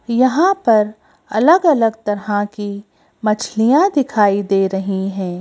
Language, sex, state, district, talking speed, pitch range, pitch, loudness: Hindi, female, Madhya Pradesh, Bhopal, 120 wpm, 200-255 Hz, 215 Hz, -16 LUFS